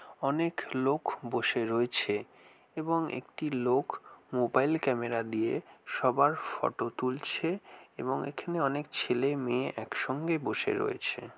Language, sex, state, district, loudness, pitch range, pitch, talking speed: Bengali, male, West Bengal, North 24 Parganas, -32 LUFS, 125-165 Hz, 135 Hz, 115 wpm